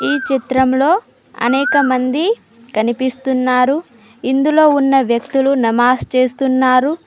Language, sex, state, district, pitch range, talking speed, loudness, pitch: Telugu, female, Telangana, Mahabubabad, 250-275 Hz, 75 wpm, -15 LUFS, 260 Hz